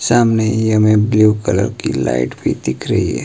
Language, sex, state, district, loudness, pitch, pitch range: Hindi, male, Himachal Pradesh, Shimla, -15 LUFS, 110 Hz, 70-110 Hz